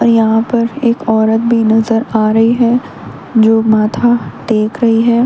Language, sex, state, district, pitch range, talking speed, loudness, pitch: Hindi, female, Haryana, Rohtak, 220-235 Hz, 170 wpm, -12 LUFS, 225 Hz